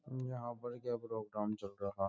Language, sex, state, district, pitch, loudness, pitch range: Hindi, male, Uttar Pradesh, Jyotiba Phule Nagar, 115 Hz, -42 LUFS, 105-120 Hz